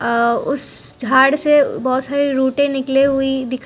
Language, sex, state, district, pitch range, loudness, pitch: Hindi, female, Gujarat, Valsad, 255-275 Hz, -16 LUFS, 270 Hz